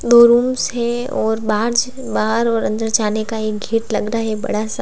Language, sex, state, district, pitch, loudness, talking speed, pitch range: Hindi, female, Uttar Pradesh, Lalitpur, 225 Hz, -17 LUFS, 210 wpm, 220-235 Hz